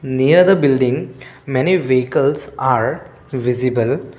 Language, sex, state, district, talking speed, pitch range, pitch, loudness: English, male, Assam, Kamrup Metropolitan, 100 wpm, 130-140 Hz, 130 Hz, -16 LUFS